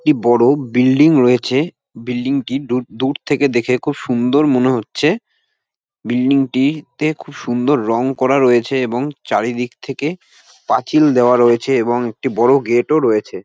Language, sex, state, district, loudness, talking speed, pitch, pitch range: Bengali, male, West Bengal, North 24 Parganas, -16 LUFS, 145 wpm, 130 Hz, 120-145 Hz